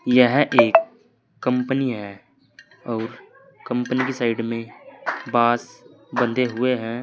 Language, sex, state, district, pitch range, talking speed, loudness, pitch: Hindi, male, Uttar Pradesh, Saharanpur, 115-130 Hz, 110 wpm, -21 LUFS, 125 Hz